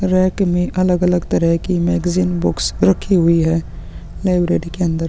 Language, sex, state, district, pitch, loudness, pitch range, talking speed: Hindi, male, Uttarakhand, Tehri Garhwal, 175 Hz, -17 LUFS, 165-185 Hz, 155 wpm